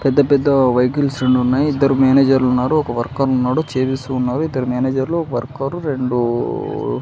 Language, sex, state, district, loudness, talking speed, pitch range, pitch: Telugu, male, Andhra Pradesh, Sri Satya Sai, -17 LUFS, 160 wpm, 125-140 Hz, 130 Hz